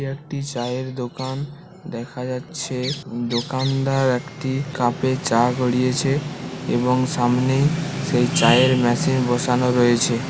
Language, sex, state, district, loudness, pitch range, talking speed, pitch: Bengali, male, West Bengal, Paschim Medinipur, -21 LUFS, 125-135 Hz, 105 wpm, 130 Hz